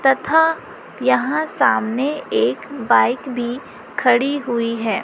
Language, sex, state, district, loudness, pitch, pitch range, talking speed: Hindi, female, Chhattisgarh, Raipur, -18 LUFS, 265 Hz, 240-290 Hz, 105 wpm